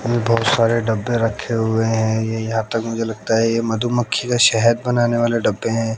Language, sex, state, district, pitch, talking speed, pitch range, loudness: Hindi, male, Haryana, Jhajjar, 115 Hz, 210 wpm, 110-120 Hz, -18 LUFS